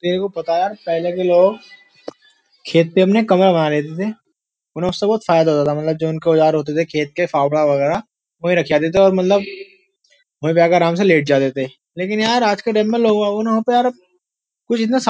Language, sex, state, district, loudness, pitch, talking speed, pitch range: Hindi, male, Uttar Pradesh, Jyotiba Phule Nagar, -16 LUFS, 180 Hz, 230 wpm, 160-220 Hz